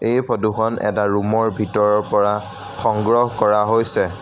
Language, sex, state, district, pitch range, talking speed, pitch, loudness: Assamese, male, Assam, Sonitpur, 105-115 Hz, 130 wpm, 105 Hz, -18 LUFS